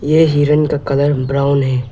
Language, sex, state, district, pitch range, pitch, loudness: Hindi, male, Arunachal Pradesh, Lower Dibang Valley, 140-150 Hz, 145 Hz, -14 LUFS